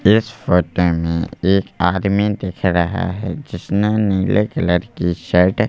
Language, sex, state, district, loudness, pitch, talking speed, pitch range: Hindi, male, Madhya Pradesh, Bhopal, -18 LUFS, 95 Hz, 150 wpm, 90-105 Hz